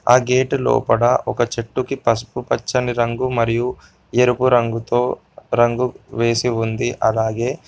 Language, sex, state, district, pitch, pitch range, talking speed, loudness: Telugu, male, Telangana, Komaram Bheem, 120 Hz, 115-125 Hz, 115 wpm, -19 LUFS